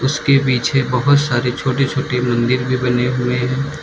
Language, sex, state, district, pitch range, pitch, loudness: Hindi, male, Uttar Pradesh, Lucknow, 125-135 Hz, 130 Hz, -16 LUFS